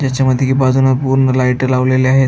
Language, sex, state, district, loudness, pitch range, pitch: Marathi, male, Maharashtra, Aurangabad, -13 LUFS, 130-135 Hz, 130 Hz